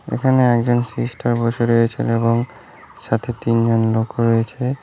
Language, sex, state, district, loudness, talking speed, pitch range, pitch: Bengali, male, West Bengal, Cooch Behar, -18 LUFS, 125 wpm, 115-120 Hz, 115 Hz